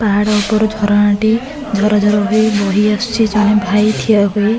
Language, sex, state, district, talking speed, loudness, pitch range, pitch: Odia, female, Odisha, Khordha, 185 wpm, -13 LUFS, 205-220 Hz, 210 Hz